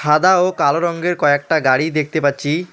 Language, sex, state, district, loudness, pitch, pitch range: Bengali, male, West Bengal, Alipurduar, -16 LUFS, 155 Hz, 145-170 Hz